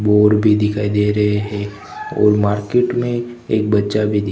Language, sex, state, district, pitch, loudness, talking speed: Hindi, male, Gujarat, Gandhinagar, 105 Hz, -17 LUFS, 180 wpm